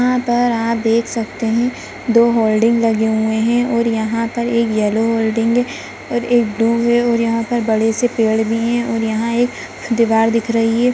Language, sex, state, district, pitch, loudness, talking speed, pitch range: Hindi, female, Chhattisgarh, Bastar, 230 Hz, -16 LUFS, 205 wpm, 225-235 Hz